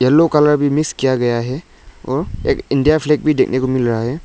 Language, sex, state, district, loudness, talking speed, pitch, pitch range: Hindi, male, Arunachal Pradesh, Lower Dibang Valley, -16 LUFS, 225 wpm, 140 Hz, 130-150 Hz